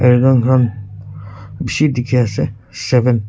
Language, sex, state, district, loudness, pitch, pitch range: Nagamese, male, Nagaland, Kohima, -15 LUFS, 120 Hz, 105-125 Hz